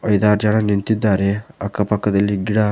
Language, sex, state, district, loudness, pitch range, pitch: Kannada, male, Karnataka, Koppal, -18 LUFS, 100-105 Hz, 105 Hz